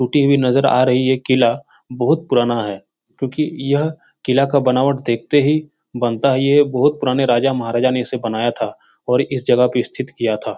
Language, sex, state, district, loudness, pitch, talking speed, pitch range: Hindi, male, Uttar Pradesh, Etah, -17 LUFS, 130 Hz, 195 wpm, 120-140 Hz